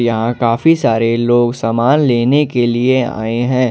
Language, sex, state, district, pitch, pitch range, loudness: Hindi, male, Jharkhand, Ranchi, 120 Hz, 115-130 Hz, -14 LUFS